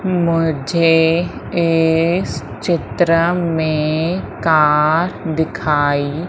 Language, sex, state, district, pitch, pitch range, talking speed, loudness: Hindi, female, Madhya Pradesh, Umaria, 165 Hz, 155-170 Hz, 55 wpm, -16 LUFS